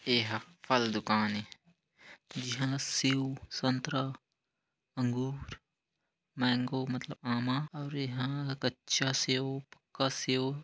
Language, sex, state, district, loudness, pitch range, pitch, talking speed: Hindi, male, Chhattisgarh, Korba, -33 LUFS, 125-135 Hz, 130 Hz, 95 wpm